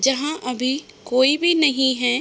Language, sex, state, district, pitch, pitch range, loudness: Hindi, female, Uttar Pradesh, Budaun, 265 Hz, 255-300 Hz, -19 LUFS